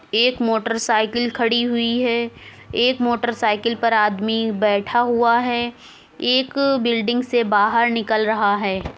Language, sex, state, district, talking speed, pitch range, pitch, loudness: Hindi, female, Uttar Pradesh, Varanasi, 140 wpm, 220-240 Hz, 235 Hz, -19 LUFS